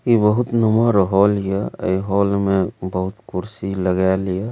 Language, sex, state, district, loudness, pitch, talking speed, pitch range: Maithili, male, Bihar, Supaul, -19 LUFS, 100 Hz, 170 wpm, 95-110 Hz